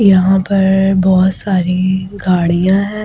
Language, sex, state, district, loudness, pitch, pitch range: Hindi, female, Delhi, New Delhi, -13 LUFS, 190 Hz, 185-195 Hz